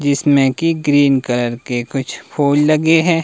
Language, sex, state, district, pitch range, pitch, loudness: Hindi, male, Himachal Pradesh, Shimla, 130-155 Hz, 145 Hz, -15 LUFS